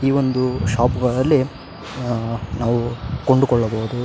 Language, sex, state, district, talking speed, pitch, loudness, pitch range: Kannada, male, Karnataka, Raichur, 90 wpm, 120 Hz, -20 LUFS, 115-130 Hz